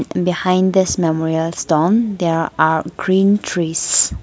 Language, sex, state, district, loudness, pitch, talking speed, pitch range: English, female, Nagaland, Kohima, -16 LUFS, 175 Hz, 115 wpm, 160-190 Hz